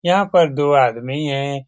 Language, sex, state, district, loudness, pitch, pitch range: Hindi, male, Bihar, Lakhisarai, -17 LUFS, 145 Hz, 140-175 Hz